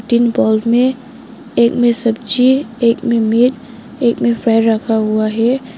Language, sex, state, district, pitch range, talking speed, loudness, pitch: Hindi, female, Arunachal Pradesh, Lower Dibang Valley, 230-245 Hz, 135 wpm, -14 LUFS, 235 Hz